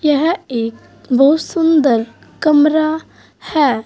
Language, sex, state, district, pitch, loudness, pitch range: Hindi, female, Uttar Pradesh, Saharanpur, 300 Hz, -15 LUFS, 260-315 Hz